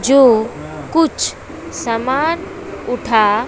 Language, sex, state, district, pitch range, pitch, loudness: Hindi, female, Bihar, West Champaran, 230-320 Hz, 250 Hz, -16 LUFS